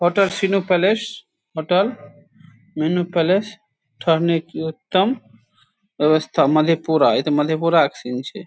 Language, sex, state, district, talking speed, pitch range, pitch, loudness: Maithili, male, Bihar, Saharsa, 120 wpm, 155-195 Hz, 170 Hz, -19 LUFS